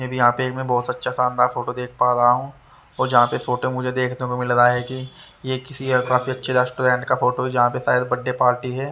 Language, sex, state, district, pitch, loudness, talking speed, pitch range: Hindi, male, Haryana, Rohtak, 125 Hz, -20 LUFS, 250 wpm, 125-130 Hz